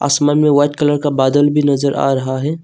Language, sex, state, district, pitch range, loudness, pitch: Hindi, male, Arunachal Pradesh, Longding, 140-145 Hz, -14 LUFS, 145 Hz